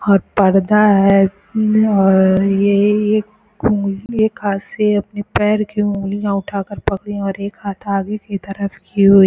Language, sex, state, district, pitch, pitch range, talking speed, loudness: Hindi, female, Uttar Pradesh, Gorakhpur, 200 Hz, 195-210 Hz, 160 wpm, -16 LUFS